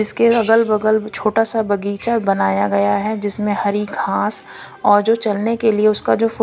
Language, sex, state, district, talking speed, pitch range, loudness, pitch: Hindi, female, Punjab, Kapurthala, 185 wpm, 205-225 Hz, -17 LUFS, 215 Hz